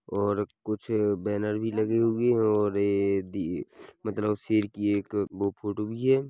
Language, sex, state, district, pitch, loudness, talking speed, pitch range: Hindi, male, Chhattisgarh, Korba, 105 Hz, -28 LUFS, 180 wpm, 100-110 Hz